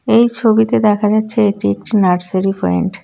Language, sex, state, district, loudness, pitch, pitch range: Bengali, female, West Bengal, Cooch Behar, -14 LUFS, 205 Hz, 185-220 Hz